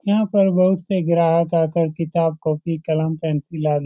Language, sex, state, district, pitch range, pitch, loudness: Hindi, male, Bihar, Supaul, 160-180 Hz, 165 Hz, -19 LUFS